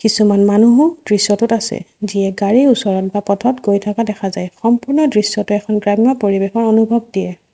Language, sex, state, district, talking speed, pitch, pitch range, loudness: Assamese, female, Assam, Sonitpur, 160 wpm, 210 Hz, 200-230 Hz, -14 LUFS